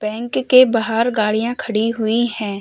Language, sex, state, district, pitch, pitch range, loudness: Hindi, female, Uttar Pradesh, Hamirpur, 225 Hz, 215-240 Hz, -17 LUFS